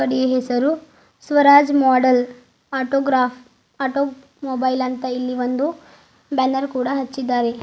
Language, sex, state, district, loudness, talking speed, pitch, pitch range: Kannada, female, Karnataka, Bidar, -19 LUFS, 95 wpm, 260 Hz, 250-275 Hz